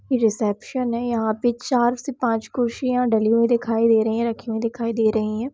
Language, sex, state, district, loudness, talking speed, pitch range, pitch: Hindi, female, Bihar, Samastipur, -21 LUFS, 215 wpm, 225-245 Hz, 230 Hz